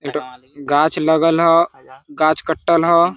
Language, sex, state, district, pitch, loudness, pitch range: Hindi, male, Jharkhand, Sahebganj, 155 Hz, -16 LUFS, 145-165 Hz